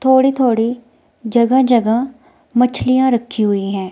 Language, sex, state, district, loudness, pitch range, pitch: Hindi, female, Himachal Pradesh, Shimla, -15 LUFS, 225-260 Hz, 240 Hz